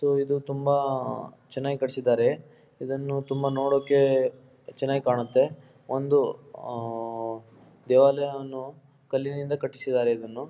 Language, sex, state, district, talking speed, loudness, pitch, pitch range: Kannada, male, Karnataka, Dharwad, 105 wpm, -26 LUFS, 135 Hz, 130-140 Hz